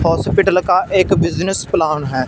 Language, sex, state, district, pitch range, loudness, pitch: Hindi, male, Punjab, Fazilka, 155-190 Hz, -15 LUFS, 180 Hz